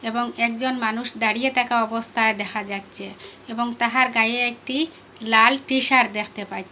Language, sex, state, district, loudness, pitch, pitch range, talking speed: Bengali, female, Assam, Hailakandi, -20 LUFS, 235 Hz, 220-250 Hz, 145 wpm